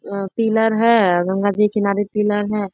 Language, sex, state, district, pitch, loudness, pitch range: Hindi, female, Bihar, Bhagalpur, 205 Hz, -17 LUFS, 200-220 Hz